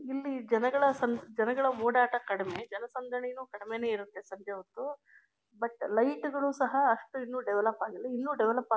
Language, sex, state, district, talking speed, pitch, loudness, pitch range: Kannada, female, Karnataka, Mysore, 155 wpm, 245 Hz, -32 LUFS, 220-260 Hz